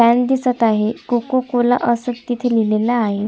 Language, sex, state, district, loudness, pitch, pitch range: Marathi, female, Maharashtra, Sindhudurg, -17 LUFS, 240 Hz, 225-245 Hz